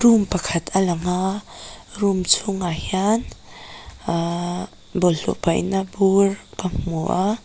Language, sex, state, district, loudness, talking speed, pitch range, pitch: Mizo, female, Mizoram, Aizawl, -21 LUFS, 120 wpm, 175-200 Hz, 190 Hz